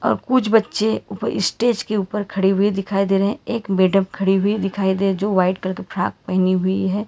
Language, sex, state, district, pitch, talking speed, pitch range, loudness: Hindi, female, Karnataka, Bangalore, 195 Hz, 230 wpm, 190-210 Hz, -19 LUFS